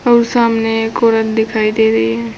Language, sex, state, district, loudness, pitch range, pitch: Hindi, female, Uttar Pradesh, Saharanpur, -13 LUFS, 215-230 Hz, 225 Hz